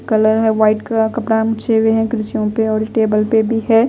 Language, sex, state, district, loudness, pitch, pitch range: Hindi, female, Delhi, New Delhi, -15 LUFS, 220 Hz, 220-225 Hz